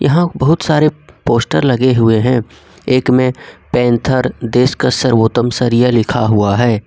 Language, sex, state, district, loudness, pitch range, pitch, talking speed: Hindi, male, Jharkhand, Ranchi, -13 LUFS, 115-130 Hz, 125 Hz, 150 wpm